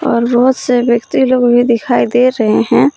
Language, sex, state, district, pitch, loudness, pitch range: Hindi, female, Jharkhand, Palamu, 245 Hz, -12 LUFS, 235-255 Hz